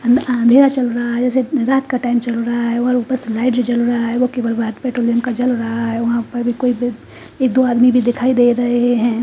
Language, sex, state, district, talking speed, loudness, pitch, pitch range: Hindi, female, Haryana, Charkhi Dadri, 235 wpm, -16 LUFS, 245 Hz, 235-250 Hz